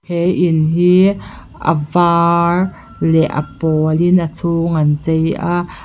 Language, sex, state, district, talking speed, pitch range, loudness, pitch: Mizo, female, Mizoram, Aizawl, 135 wpm, 160-175 Hz, -15 LUFS, 170 Hz